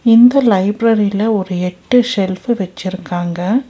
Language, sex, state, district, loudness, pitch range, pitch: Tamil, female, Tamil Nadu, Nilgiris, -15 LUFS, 185-235 Hz, 205 Hz